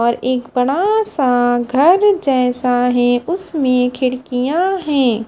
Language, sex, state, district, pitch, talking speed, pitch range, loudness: Hindi, female, Haryana, Charkhi Dadri, 255 Hz, 115 wpm, 245-325 Hz, -15 LUFS